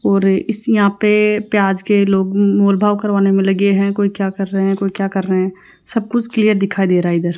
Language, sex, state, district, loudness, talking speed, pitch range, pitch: Hindi, female, Rajasthan, Jaipur, -15 LUFS, 235 wpm, 195-205 Hz, 200 Hz